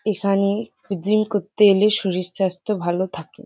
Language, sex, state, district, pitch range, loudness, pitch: Bengali, female, West Bengal, Jhargram, 190-215 Hz, -20 LUFS, 200 Hz